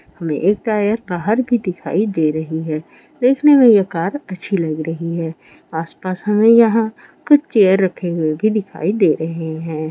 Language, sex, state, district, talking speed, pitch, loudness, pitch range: Hindi, female, Rajasthan, Churu, 180 wpm, 185 Hz, -17 LUFS, 160-220 Hz